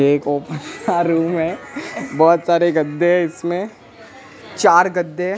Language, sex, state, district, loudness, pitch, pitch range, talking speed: Hindi, male, Maharashtra, Mumbai Suburban, -17 LUFS, 170 Hz, 160-175 Hz, 135 wpm